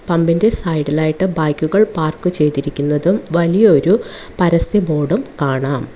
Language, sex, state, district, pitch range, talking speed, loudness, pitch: Malayalam, female, Kerala, Kollam, 150-185 Hz, 100 wpm, -15 LUFS, 165 Hz